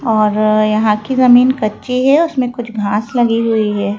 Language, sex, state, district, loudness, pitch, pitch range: Hindi, female, Madhya Pradesh, Bhopal, -13 LUFS, 225 Hz, 215-250 Hz